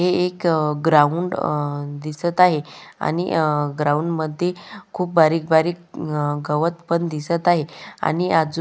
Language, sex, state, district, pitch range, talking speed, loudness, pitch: Marathi, female, Maharashtra, Solapur, 150-175 Hz, 155 wpm, -20 LUFS, 160 Hz